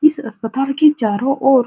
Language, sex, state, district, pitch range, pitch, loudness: Hindi, female, Bihar, Supaul, 225-275 Hz, 270 Hz, -16 LUFS